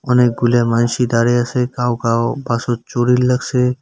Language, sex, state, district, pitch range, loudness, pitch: Bengali, male, West Bengal, Cooch Behar, 120-125 Hz, -16 LUFS, 120 Hz